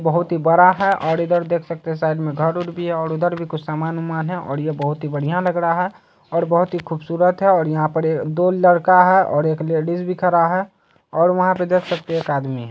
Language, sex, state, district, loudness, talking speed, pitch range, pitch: Hindi, male, Bihar, Saharsa, -18 LUFS, 270 wpm, 160-180 Hz, 170 Hz